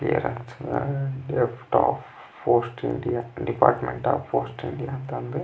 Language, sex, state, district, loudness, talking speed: Kannada, male, Karnataka, Belgaum, -25 LUFS, 75 wpm